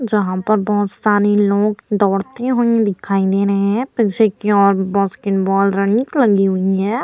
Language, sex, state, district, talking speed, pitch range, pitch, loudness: Hindi, female, Bihar, Vaishali, 135 wpm, 195-215 Hz, 205 Hz, -16 LUFS